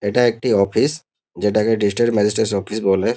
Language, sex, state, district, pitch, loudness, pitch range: Bengali, male, West Bengal, Kolkata, 110 Hz, -18 LUFS, 100-120 Hz